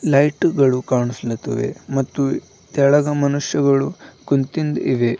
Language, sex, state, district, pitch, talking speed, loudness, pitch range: Kannada, male, Karnataka, Bidar, 140 Hz, 80 wpm, -19 LUFS, 130-145 Hz